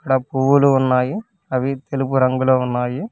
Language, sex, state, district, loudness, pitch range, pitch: Telugu, male, Telangana, Hyderabad, -18 LUFS, 130-140 Hz, 130 Hz